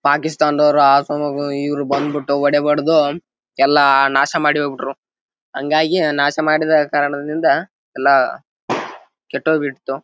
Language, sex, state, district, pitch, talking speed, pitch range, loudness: Kannada, male, Karnataka, Bellary, 145 Hz, 100 wpm, 140-150 Hz, -16 LUFS